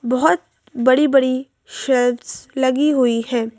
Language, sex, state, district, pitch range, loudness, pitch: Hindi, female, Madhya Pradesh, Bhopal, 245-270 Hz, -17 LUFS, 255 Hz